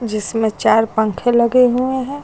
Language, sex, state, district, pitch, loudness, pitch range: Hindi, female, Uttar Pradesh, Lucknow, 235 Hz, -16 LUFS, 220-255 Hz